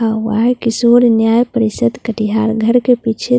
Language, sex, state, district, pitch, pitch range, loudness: Hindi, female, Bihar, Katihar, 230 Hz, 220-240 Hz, -13 LUFS